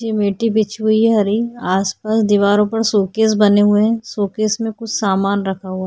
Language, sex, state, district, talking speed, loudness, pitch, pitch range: Hindi, female, Uttarakhand, Tehri Garhwal, 205 wpm, -16 LUFS, 215 Hz, 200-220 Hz